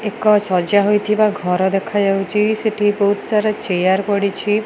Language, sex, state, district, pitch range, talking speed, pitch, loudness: Odia, female, Odisha, Malkangiri, 195-210 Hz, 130 wpm, 205 Hz, -17 LUFS